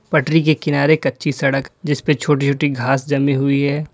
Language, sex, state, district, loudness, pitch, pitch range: Hindi, male, Uttar Pradesh, Lalitpur, -17 LUFS, 145 Hz, 140-150 Hz